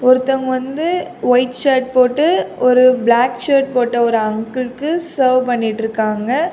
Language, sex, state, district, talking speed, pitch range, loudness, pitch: Tamil, female, Tamil Nadu, Kanyakumari, 120 wpm, 240-270 Hz, -15 LUFS, 255 Hz